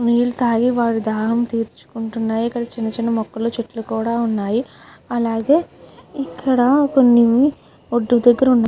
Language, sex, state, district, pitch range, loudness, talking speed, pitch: Telugu, female, Andhra Pradesh, Guntur, 225-245 Hz, -18 LUFS, 120 wpm, 235 Hz